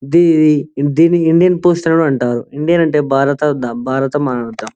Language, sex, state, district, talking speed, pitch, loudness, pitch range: Telugu, male, Telangana, Karimnagar, 100 wpm, 150 Hz, -13 LUFS, 135-165 Hz